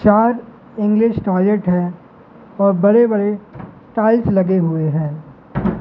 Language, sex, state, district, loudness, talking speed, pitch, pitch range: Hindi, male, Madhya Pradesh, Katni, -16 LUFS, 105 wpm, 205 Hz, 180-220 Hz